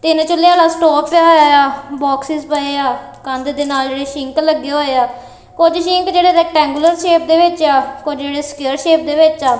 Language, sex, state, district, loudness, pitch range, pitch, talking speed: Punjabi, female, Punjab, Kapurthala, -13 LUFS, 275-330 Hz, 295 Hz, 205 wpm